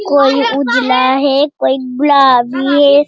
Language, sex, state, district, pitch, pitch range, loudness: Hindi, female, Bihar, Jamui, 275 Hz, 260-285 Hz, -11 LUFS